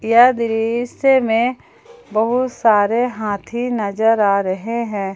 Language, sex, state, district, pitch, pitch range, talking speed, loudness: Hindi, female, Jharkhand, Palamu, 230 Hz, 215-245 Hz, 115 wpm, -17 LUFS